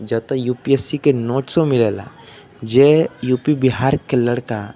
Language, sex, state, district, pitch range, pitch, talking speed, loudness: Bhojpuri, male, Uttar Pradesh, Deoria, 120-140 Hz, 130 Hz, 150 wpm, -17 LUFS